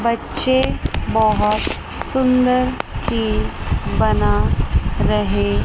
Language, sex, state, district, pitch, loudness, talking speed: Hindi, male, Chandigarh, Chandigarh, 220 Hz, -19 LUFS, 65 wpm